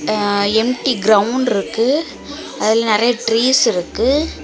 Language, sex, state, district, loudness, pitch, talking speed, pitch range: Tamil, female, Tamil Nadu, Kanyakumari, -15 LUFS, 230 Hz, 110 wpm, 215-255 Hz